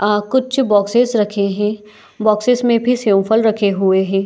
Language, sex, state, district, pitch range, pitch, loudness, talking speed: Hindi, female, Chhattisgarh, Bilaspur, 200-235 Hz, 210 Hz, -15 LUFS, 170 wpm